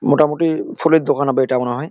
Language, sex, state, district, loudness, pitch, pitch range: Bengali, male, West Bengal, Jalpaiguri, -17 LUFS, 145 Hz, 130-160 Hz